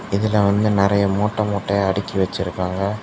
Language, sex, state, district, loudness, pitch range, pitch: Tamil, male, Tamil Nadu, Kanyakumari, -19 LUFS, 95-105 Hz, 100 Hz